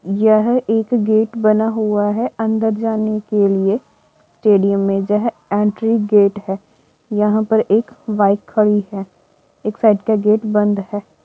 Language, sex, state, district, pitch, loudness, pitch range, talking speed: Marwari, female, Rajasthan, Churu, 215 Hz, -16 LUFS, 205-220 Hz, 150 wpm